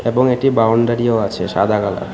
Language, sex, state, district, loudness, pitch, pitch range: Bengali, male, Tripura, West Tripura, -16 LUFS, 120 Hz, 115-125 Hz